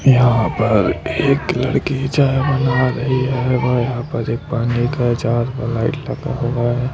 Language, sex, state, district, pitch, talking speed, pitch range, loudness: Hindi, male, Chhattisgarh, Raipur, 125 Hz, 175 wpm, 120-135 Hz, -18 LUFS